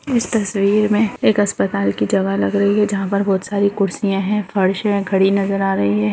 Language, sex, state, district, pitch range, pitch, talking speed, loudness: Hindi, female, Bihar, Kishanganj, 185-205 Hz, 195 Hz, 235 wpm, -17 LUFS